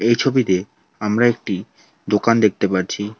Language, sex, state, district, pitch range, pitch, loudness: Bengali, male, West Bengal, Alipurduar, 100-115 Hz, 105 Hz, -19 LUFS